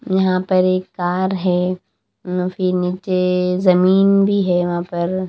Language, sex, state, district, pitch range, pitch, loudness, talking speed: Hindi, female, Punjab, Kapurthala, 180-185 Hz, 185 Hz, -17 LUFS, 135 wpm